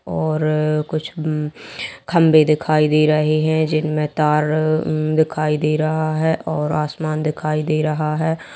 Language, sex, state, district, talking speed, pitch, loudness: Hindi, female, Chhattisgarh, Kabirdham, 145 wpm, 155 Hz, -18 LUFS